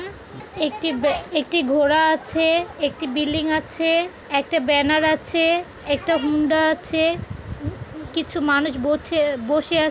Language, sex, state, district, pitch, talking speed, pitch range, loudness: Bengali, female, West Bengal, Jhargram, 310 Hz, 120 wpm, 295-325 Hz, -20 LUFS